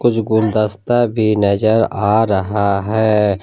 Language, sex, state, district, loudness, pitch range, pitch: Hindi, male, Jharkhand, Ranchi, -15 LUFS, 100-110 Hz, 110 Hz